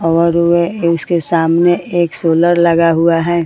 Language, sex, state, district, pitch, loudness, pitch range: Hindi, female, Bihar, Jahanabad, 170 Hz, -13 LUFS, 165-170 Hz